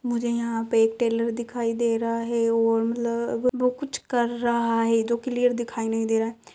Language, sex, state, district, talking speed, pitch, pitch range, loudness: Hindi, female, Bihar, Lakhisarai, 200 wpm, 235 Hz, 230-240 Hz, -24 LUFS